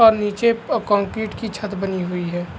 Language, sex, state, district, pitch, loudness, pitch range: Hindi, male, Bihar, Araria, 205 Hz, -21 LUFS, 190-220 Hz